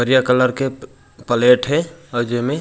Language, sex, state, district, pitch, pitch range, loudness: Chhattisgarhi, male, Chhattisgarh, Raigarh, 125 Hz, 120-135 Hz, -17 LUFS